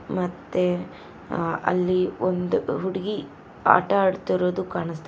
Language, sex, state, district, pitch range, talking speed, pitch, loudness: Kannada, female, Karnataka, Koppal, 180-190 Hz, 95 wpm, 180 Hz, -24 LUFS